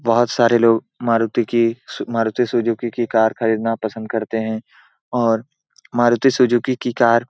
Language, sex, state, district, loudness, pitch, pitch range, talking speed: Hindi, male, Bihar, Saran, -18 LUFS, 115 Hz, 115-120 Hz, 155 wpm